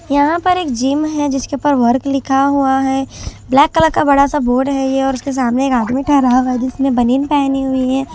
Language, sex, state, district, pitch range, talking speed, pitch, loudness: Hindi, female, Chhattisgarh, Raipur, 260-285 Hz, 235 wpm, 270 Hz, -14 LUFS